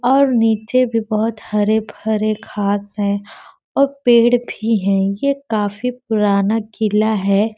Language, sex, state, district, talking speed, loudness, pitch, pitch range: Hindi, female, Chhattisgarh, Sarguja, 125 wpm, -17 LUFS, 220 Hz, 210-240 Hz